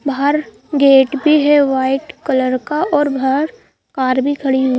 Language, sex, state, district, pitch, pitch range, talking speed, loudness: Hindi, female, Madhya Pradesh, Bhopal, 275 Hz, 265-290 Hz, 165 wpm, -15 LUFS